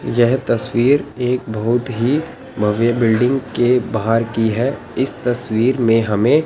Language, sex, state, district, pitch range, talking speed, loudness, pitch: Hindi, male, Chandigarh, Chandigarh, 115-125 Hz, 140 wpm, -17 LUFS, 120 Hz